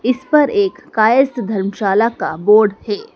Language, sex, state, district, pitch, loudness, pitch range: Hindi, female, Madhya Pradesh, Dhar, 225 Hz, -15 LUFS, 205-280 Hz